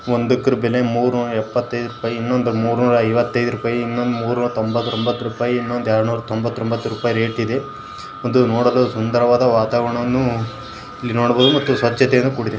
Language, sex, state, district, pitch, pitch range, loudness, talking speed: Kannada, male, Karnataka, Bijapur, 120 Hz, 115-120 Hz, -18 LUFS, 120 wpm